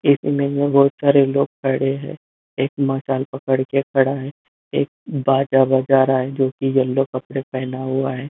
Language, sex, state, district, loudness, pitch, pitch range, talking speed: Hindi, male, Bihar, Jamui, -19 LUFS, 135 Hz, 130-140 Hz, 175 wpm